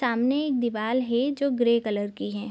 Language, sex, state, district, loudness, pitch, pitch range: Hindi, female, Bihar, East Champaran, -25 LUFS, 235 Hz, 220-260 Hz